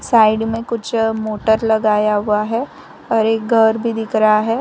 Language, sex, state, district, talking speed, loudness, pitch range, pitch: Hindi, female, Gujarat, Valsad, 180 wpm, -16 LUFS, 215-225 Hz, 220 Hz